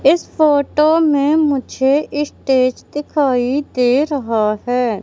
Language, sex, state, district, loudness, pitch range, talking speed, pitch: Hindi, female, Madhya Pradesh, Katni, -16 LUFS, 255-295 Hz, 105 wpm, 280 Hz